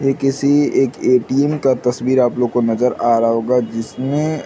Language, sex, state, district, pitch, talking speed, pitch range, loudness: Hindi, male, Chhattisgarh, Raigarh, 125 Hz, 200 wpm, 120-135 Hz, -16 LUFS